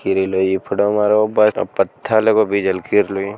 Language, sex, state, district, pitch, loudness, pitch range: Magahi, male, Bihar, Samastipur, 100 Hz, -17 LUFS, 95-105 Hz